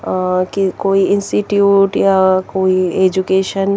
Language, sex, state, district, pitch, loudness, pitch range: Hindi, female, Chandigarh, Chandigarh, 190 Hz, -14 LUFS, 185-195 Hz